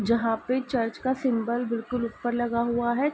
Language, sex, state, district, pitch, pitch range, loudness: Hindi, female, Uttar Pradesh, Ghazipur, 240 Hz, 235-250 Hz, -27 LUFS